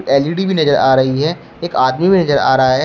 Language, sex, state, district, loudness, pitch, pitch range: Hindi, male, Uttar Pradesh, Shamli, -14 LUFS, 145 Hz, 130-170 Hz